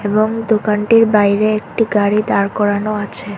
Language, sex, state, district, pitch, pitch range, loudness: Bengali, female, Tripura, Unakoti, 210 Hz, 205-215 Hz, -15 LUFS